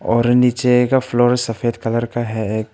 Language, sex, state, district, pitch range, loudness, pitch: Hindi, male, Arunachal Pradesh, Papum Pare, 115-125 Hz, -17 LUFS, 120 Hz